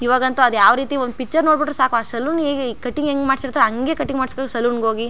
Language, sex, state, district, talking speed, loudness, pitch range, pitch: Kannada, female, Karnataka, Chamarajanagar, 235 wpm, -18 LUFS, 240-285 Hz, 260 Hz